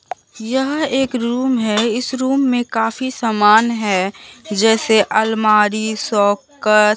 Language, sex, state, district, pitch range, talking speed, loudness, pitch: Hindi, male, Bihar, Katihar, 215-260 Hz, 120 wpm, -16 LUFS, 225 Hz